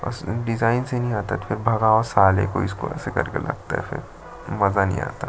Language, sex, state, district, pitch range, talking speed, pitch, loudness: Hindi, male, Chhattisgarh, Jashpur, 100-120 Hz, 160 wpm, 110 Hz, -22 LUFS